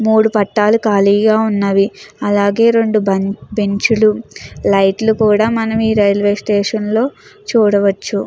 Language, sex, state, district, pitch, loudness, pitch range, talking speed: Telugu, female, Andhra Pradesh, Chittoor, 210 Hz, -14 LUFS, 200-220 Hz, 100 wpm